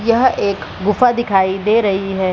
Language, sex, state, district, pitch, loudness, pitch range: Hindi, female, Bihar, Supaul, 205 Hz, -16 LUFS, 190-230 Hz